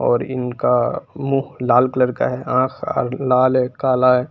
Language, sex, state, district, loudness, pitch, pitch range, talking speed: Hindi, male, Jharkhand, Palamu, -18 LUFS, 125 Hz, 125-130 Hz, 165 wpm